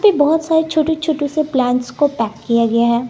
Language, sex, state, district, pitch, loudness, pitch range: Hindi, female, Bihar, West Champaran, 290 Hz, -16 LUFS, 235-315 Hz